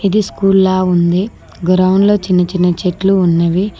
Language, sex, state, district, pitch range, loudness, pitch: Telugu, female, Telangana, Mahabubabad, 180-195 Hz, -13 LUFS, 185 Hz